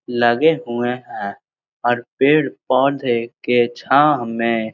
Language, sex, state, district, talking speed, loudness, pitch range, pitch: Hindi, male, Bihar, Jahanabad, 115 wpm, -18 LUFS, 120-135 Hz, 120 Hz